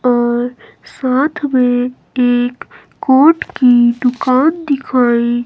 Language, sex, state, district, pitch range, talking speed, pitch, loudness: Hindi, female, Himachal Pradesh, Shimla, 245-270 Hz, 90 wpm, 250 Hz, -13 LUFS